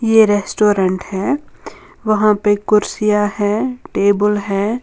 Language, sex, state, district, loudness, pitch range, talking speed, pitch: Hindi, female, Uttar Pradesh, Lalitpur, -16 LUFS, 205-220 Hz, 110 wpm, 210 Hz